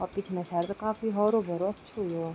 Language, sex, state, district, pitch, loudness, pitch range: Garhwali, female, Uttarakhand, Tehri Garhwal, 195 Hz, -30 LUFS, 175-215 Hz